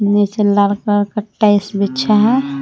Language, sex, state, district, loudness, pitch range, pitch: Hindi, female, Jharkhand, Palamu, -15 LUFS, 205-215 Hz, 205 Hz